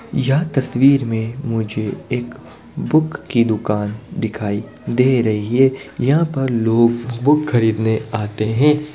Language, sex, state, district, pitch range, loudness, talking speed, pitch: Hindi, male, Bihar, Madhepura, 110-135 Hz, -18 LUFS, 135 wpm, 120 Hz